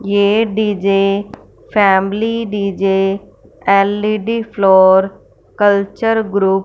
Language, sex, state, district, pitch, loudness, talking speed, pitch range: Hindi, female, Punjab, Fazilka, 200 Hz, -14 LUFS, 80 wpm, 195-215 Hz